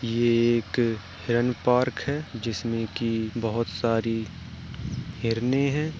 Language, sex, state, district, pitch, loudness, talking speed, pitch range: Hindi, male, Uttar Pradesh, Jalaun, 115 Hz, -26 LUFS, 110 wpm, 115-125 Hz